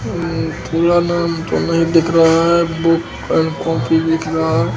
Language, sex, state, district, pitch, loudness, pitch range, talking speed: Hindi, male, Bihar, Begusarai, 165 Hz, -16 LUFS, 160-170 Hz, 125 wpm